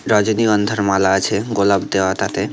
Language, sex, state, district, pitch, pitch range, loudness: Bengali, male, West Bengal, North 24 Parganas, 100 Hz, 95-105 Hz, -17 LUFS